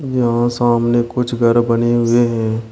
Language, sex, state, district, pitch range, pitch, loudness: Hindi, male, Uttar Pradesh, Shamli, 115-120 Hz, 120 Hz, -15 LUFS